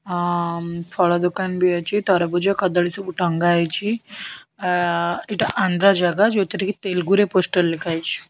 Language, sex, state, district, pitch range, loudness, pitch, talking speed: Odia, female, Odisha, Khordha, 175-200 Hz, -20 LUFS, 180 Hz, 145 wpm